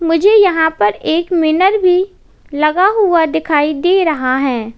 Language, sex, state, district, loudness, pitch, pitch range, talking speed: Hindi, female, Uttar Pradesh, Lalitpur, -13 LUFS, 330 Hz, 300-370 Hz, 150 wpm